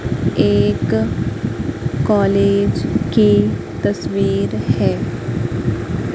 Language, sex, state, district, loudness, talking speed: Hindi, female, Madhya Pradesh, Katni, -17 LUFS, 50 wpm